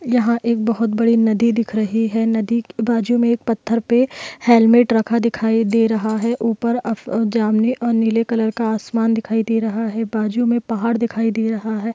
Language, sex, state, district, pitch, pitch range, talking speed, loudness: Hindi, male, Jharkhand, Jamtara, 225 Hz, 225-235 Hz, 200 wpm, -18 LUFS